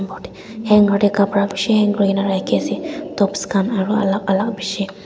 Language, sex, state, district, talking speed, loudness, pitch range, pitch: Nagamese, female, Nagaland, Dimapur, 165 wpm, -18 LUFS, 195-210 Hz, 200 Hz